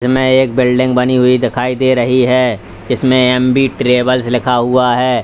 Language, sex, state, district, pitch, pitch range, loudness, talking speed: Hindi, male, Uttar Pradesh, Lalitpur, 125 Hz, 125-130 Hz, -12 LUFS, 150 wpm